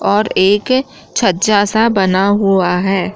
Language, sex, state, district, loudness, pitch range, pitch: Hindi, female, Bihar, Jahanabad, -13 LUFS, 190-220 Hz, 200 Hz